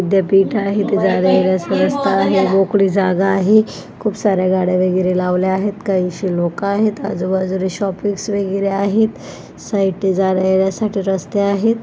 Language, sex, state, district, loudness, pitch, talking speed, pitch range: Marathi, female, Maharashtra, Pune, -16 LUFS, 195 Hz, 135 wpm, 185-200 Hz